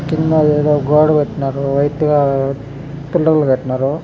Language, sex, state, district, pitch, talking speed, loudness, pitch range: Telugu, male, Andhra Pradesh, Chittoor, 145 Hz, 120 wpm, -15 LUFS, 135-150 Hz